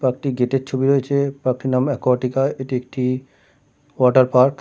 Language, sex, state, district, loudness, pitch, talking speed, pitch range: Bengali, male, West Bengal, Kolkata, -19 LUFS, 130 Hz, 210 wpm, 125-135 Hz